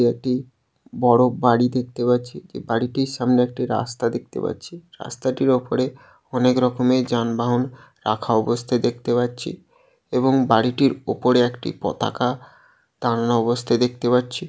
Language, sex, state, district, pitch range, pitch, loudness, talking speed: Bengali, male, West Bengal, Jalpaiguri, 120-130 Hz, 125 Hz, -21 LUFS, 120 wpm